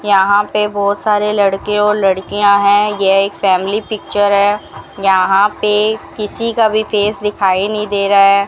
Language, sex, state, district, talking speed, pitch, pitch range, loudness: Hindi, female, Rajasthan, Bikaner, 170 wpm, 205 Hz, 195-210 Hz, -13 LUFS